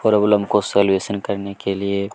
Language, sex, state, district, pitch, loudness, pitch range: Hindi, male, Chhattisgarh, Kabirdham, 100 Hz, -19 LUFS, 100-105 Hz